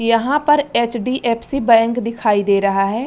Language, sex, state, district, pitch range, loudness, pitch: Hindi, female, Bihar, Lakhisarai, 225-255 Hz, -16 LUFS, 230 Hz